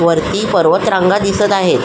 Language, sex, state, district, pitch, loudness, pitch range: Marathi, female, Maharashtra, Solapur, 195 Hz, -13 LUFS, 170-200 Hz